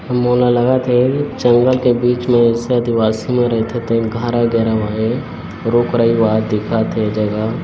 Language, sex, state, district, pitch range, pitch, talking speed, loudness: Hindi, male, Chhattisgarh, Bilaspur, 110-125 Hz, 120 Hz, 165 wpm, -15 LUFS